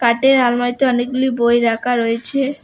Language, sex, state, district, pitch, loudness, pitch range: Bengali, female, West Bengal, Alipurduar, 245 Hz, -16 LUFS, 235-265 Hz